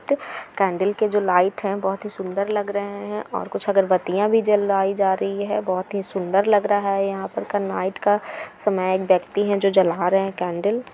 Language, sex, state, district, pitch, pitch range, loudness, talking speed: Hindi, female, Bihar, Gaya, 195 Hz, 190-205 Hz, -22 LUFS, 220 wpm